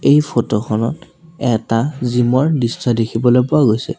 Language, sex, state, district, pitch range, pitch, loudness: Assamese, male, Assam, Sonitpur, 115-150 Hz, 125 Hz, -16 LUFS